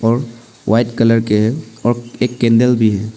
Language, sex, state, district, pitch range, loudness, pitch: Hindi, male, Arunachal Pradesh, Papum Pare, 110-120 Hz, -15 LUFS, 115 Hz